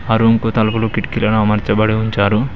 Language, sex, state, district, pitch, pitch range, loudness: Telugu, male, Telangana, Mahabubabad, 110 Hz, 105-115 Hz, -15 LUFS